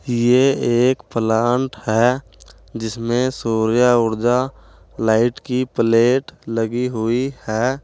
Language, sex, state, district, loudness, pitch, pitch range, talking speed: Hindi, male, Uttar Pradesh, Saharanpur, -18 LUFS, 120 Hz, 115-125 Hz, 100 wpm